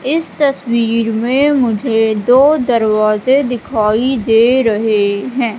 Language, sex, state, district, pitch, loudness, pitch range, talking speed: Hindi, female, Madhya Pradesh, Katni, 235 Hz, -13 LUFS, 220-260 Hz, 105 wpm